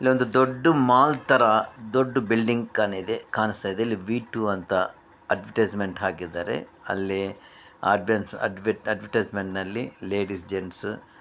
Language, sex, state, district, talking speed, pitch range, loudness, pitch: Kannada, male, Karnataka, Bellary, 135 wpm, 95-115 Hz, -25 LUFS, 105 Hz